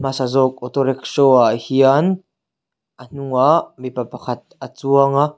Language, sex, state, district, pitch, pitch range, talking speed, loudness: Mizo, male, Mizoram, Aizawl, 135 Hz, 125-140 Hz, 145 wpm, -17 LUFS